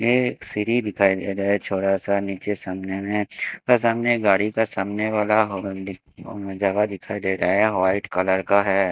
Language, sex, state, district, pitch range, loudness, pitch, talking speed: Hindi, male, Haryana, Jhajjar, 95-105 Hz, -22 LUFS, 100 Hz, 175 wpm